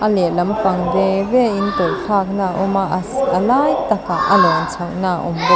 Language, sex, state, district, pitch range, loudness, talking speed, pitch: Mizo, female, Mizoram, Aizawl, 180-210 Hz, -17 LUFS, 235 wpm, 195 Hz